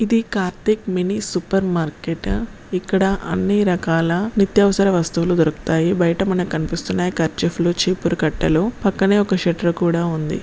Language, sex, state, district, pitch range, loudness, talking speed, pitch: Telugu, female, Telangana, Karimnagar, 170-195 Hz, -19 LUFS, 130 wpm, 180 Hz